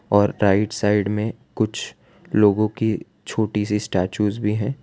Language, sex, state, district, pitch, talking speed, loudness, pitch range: Hindi, male, Gujarat, Valsad, 105 Hz, 150 wpm, -21 LUFS, 105-110 Hz